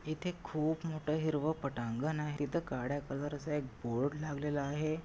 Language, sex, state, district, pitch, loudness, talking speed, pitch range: Marathi, male, Maharashtra, Nagpur, 150 Hz, -37 LUFS, 165 wpm, 140-155 Hz